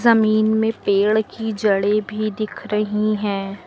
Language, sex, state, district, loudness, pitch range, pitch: Hindi, female, Uttar Pradesh, Lucknow, -20 LUFS, 205-220 Hz, 215 Hz